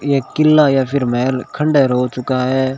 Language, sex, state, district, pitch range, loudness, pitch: Hindi, male, Rajasthan, Bikaner, 125-140 Hz, -15 LUFS, 130 Hz